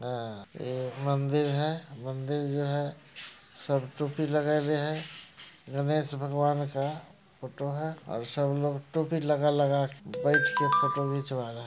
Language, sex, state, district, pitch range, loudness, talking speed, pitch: Hindi, male, Bihar, Muzaffarpur, 140-150 Hz, -29 LUFS, 155 wpm, 145 Hz